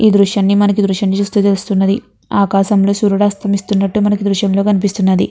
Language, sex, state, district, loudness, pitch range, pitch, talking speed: Telugu, female, Andhra Pradesh, Guntur, -14 LUFS, 195-205 Hz, 200 Hz, 170 wpm